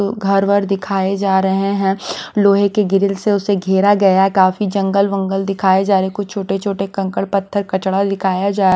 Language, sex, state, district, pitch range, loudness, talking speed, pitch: Hindi, female, Bihar, West Champaran, 190-200 Hz, -16 LUFS, 185 wpm, 195 Hz